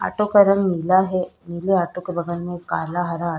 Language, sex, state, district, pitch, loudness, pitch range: Hindi, female, Uttar Pradesh, Jalaun, 180 Hz, -20 LUFS, 170-190 Hz